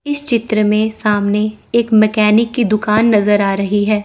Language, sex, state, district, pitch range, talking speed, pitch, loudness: Hindi, female, Chandigarh, Chandigarh, 210-225 Hz, 180 wpm, 215 Hz, -14 LUFS